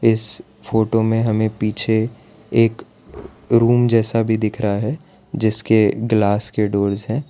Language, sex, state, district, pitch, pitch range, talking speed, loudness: Hindi, male, Gujarat, Valsad, 110 Hz, 110-115 Hz, 130 wpm, -18 LUFS